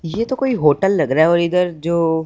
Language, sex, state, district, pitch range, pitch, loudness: Hindi, male, Punjab, Fazilka, 160-195 Hz, 170 Hz, -16 LUFS